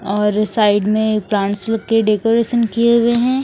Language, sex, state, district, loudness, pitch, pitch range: Hindi, female, Haryana, Rohtak, -15 LUFS, 220 Hz, 210-235 Hz